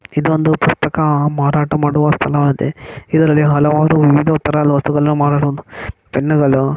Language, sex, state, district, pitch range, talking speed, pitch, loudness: Kannada, male, Karnataka, Mysore, 145-155 Hz, 115 wpm, 150 Hz, -14 LUFS